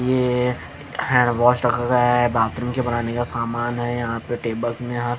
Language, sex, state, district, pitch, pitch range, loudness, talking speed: Hindi, male, Haryana, Jhajjar, 120 Hz, 120-125 Hz, -21 LUFS, 185 wpm